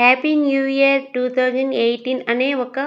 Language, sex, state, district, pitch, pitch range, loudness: Telugu, female, Andhra Pradesh, Sri Satya Sai, 260 Hz, 250-275 Hz, -18 LUFS